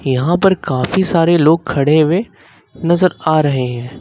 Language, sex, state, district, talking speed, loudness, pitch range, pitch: Hindi, male, Uttar Pradesh, Lucknow, 165 wpm, -14 LUFS, 140-175 Hz, 160 Hz